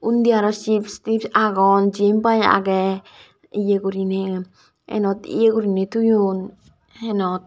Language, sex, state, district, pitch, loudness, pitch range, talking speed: Chakma, female, Tripura, Dhalai, 200 Hz, -19 LUFS, 190-220 Hz, 120 wpm